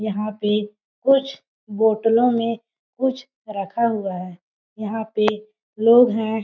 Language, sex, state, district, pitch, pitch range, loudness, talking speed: Hindi, female, Chhattisgarh, Balrampur, 220 Hz, 210-235 Hz, -20 LUFS, 120 wpm